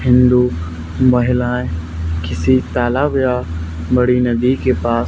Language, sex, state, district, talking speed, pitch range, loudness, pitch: Hindi, male, Haryana, Charkhi Dadri, 105 wpm, 80-125 Hz, -16 LUFS, 120 Hz